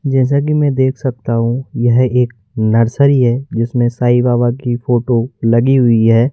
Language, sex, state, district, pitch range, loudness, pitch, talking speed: Hindi, male, Madhya Pradesh, Bhopal, 115-130 Hz, -14 LUFS, 120 Hz, 170 wpm